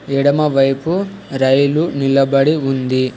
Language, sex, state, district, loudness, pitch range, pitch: Telugu, male, Telangana, Hyderabad, -15 LUFS, 135-150 Hz, 140 Hz